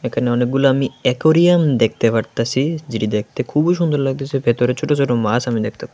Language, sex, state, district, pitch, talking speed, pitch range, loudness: Bengali, male, Tripura, West Tripura, 125 Hz, 170 wpm, 115-145 Hz, -17 LUFS